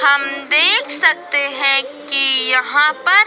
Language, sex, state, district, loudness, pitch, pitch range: Hindi, female, Madhya Pradesh, Dhar, -13 LUFS, 280 Hz, 275-300 Hz